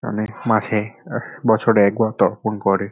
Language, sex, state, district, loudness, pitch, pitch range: Bengali, male, West Bengal, North 24 Parganas, -19 LUFS, 105 Hz, 100-110 Hz